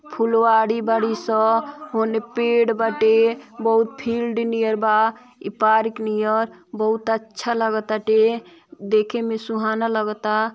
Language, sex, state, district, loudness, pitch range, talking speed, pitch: Bhojpuri, female, Uttar Pradesh, Ghazipur, -20 LUFS, 220-230 Hz, 110 wpm, 225 Hz